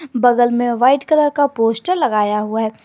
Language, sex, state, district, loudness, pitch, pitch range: Hindi, male, Jharkhand, Garhwa, -16 LUFS, 240 Hz, 225-285 Hz